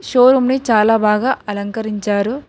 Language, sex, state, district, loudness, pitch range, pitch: Telugu, female, Telangana, Hyderabad, -15 LUFS, 210-255 Hz, 225 Hz